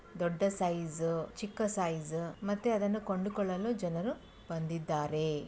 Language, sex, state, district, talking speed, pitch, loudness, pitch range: Kannada, female, Karnataka, Bellary, 100 wpm, 180 Hz, -35 LUFS, 165-205 Hz